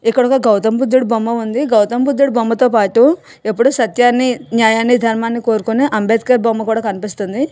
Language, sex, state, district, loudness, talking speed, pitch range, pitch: Telugu, female, Andhra Pradesh, Visakhapatnam, -14 LUFS, 135 wpm, 225-255 Hz, 230 Hz